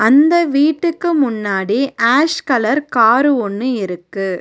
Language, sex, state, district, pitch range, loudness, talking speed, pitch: Tamil, female, Tamil Nadu, Nilgiris, 215-295 Hz, -15 LUFS, 110 wpm, 255 Hz